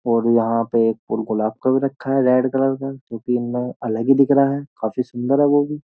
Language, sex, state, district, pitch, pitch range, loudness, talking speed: Hindi, male, Uttar Pradesh, Jyotiba Phule Nagar, 125 Hz, 115-135 Hz, -19 LUFS, 265 wpm